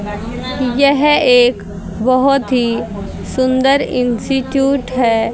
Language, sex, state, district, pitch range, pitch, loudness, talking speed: Hindi, female, Haryana, Jhajjar, 230-270 Hz, 250 Hz, -14 LUFS, 80 wpm